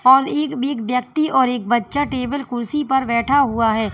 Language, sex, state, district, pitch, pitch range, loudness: Hindi, female, Uttar Pradesh, Lalitpur, 260 Hz, 240-285 Hz, -19 LUFS